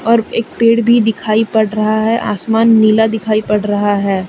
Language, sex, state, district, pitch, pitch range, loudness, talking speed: Hindi, female, Jharkhand, Deoghar, 220 Hz, 210-230 Hz, -13 LUFS, 195 wpm